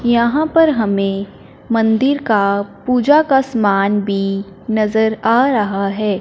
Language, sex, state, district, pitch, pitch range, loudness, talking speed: Hindi, male, Punjab, Fazilka, 220 Hz, 200-250 Hz, -15 LUFS, 125 wpm